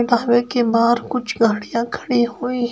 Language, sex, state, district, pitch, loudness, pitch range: Hindi, female, Uttar Pradesh, Shamli, 240 Hz, -19 LUFS, 235-245 Hz